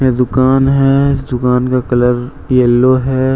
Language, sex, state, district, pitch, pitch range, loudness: Hindi, male, Jharkhand, Deoghar, 130 Hz, 125-135 Hz, -12 LUFS